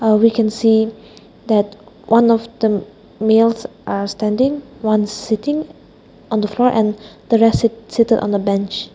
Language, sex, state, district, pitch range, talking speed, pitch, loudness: English, female, Nagaland, Dimapur, 210-230 Hz, 160 wpm, 220 Hz, -17 LUFS